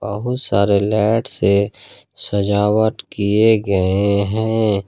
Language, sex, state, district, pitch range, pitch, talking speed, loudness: Hindi, male, Jharkhand, Ranchi, 100-110 Hz, 105 Hz, 100 wpm, -17 LUFS